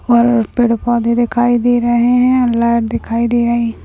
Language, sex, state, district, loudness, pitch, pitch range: Hindi, female, Uttar Pradesh, Gorakhpur, -13 LUFS, 235 Hz, 235-240 Hz